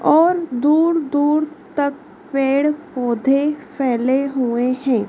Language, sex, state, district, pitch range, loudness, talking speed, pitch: Hindi, female, Madhya Pradesh, Dhar, 255-305 Hz, -18 LUFS, 105 wpm, 285 Hz